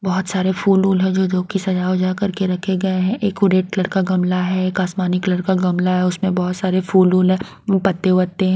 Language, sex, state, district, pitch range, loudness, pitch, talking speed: Hindi, female, Haryana, Rohtak, 185-190 Hz, -18 LUFS, 185 Hz, 250 wpm